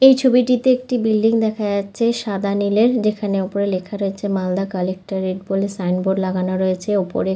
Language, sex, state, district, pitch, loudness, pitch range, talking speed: Bengali, female, West Bengal, Malda, 200 Hz, -19 LUFS, 190-220 Hz, 155 wpm